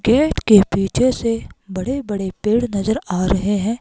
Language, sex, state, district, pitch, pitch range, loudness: Hindi, female, Himachal Pradesh, Shimla, 210 Hz, 195-235 Hz, -18 LUFS